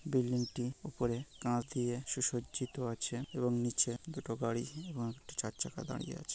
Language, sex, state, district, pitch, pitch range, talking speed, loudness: Bengali, male, West Bengal, North 24 Parganas, 125 Hz, 120-135 Hz, 130 wpm, -37 LUFS